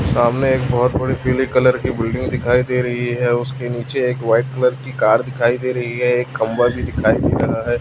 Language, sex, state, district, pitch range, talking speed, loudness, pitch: Hindi, male, Chhattisgarh, Raipur, 120-130 Hz, 230 wpm, -18 LUFS, 125 Hz